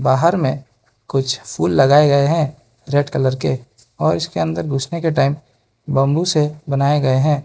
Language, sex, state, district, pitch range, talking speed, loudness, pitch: Hindi, male, Arunachal Pradesh, Lower Dibang Valley, 130-150 Hz, 170 wpm, -17 LUFS, 140 Hz